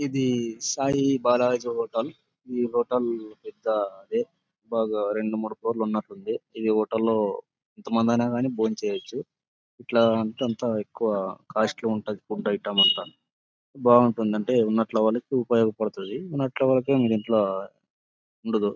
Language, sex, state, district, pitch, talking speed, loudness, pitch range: Telugu, male, Andhra Pradesh, Anantapur, 115 Hz, 140 wpm, -25 LUFS, 110-125 Hz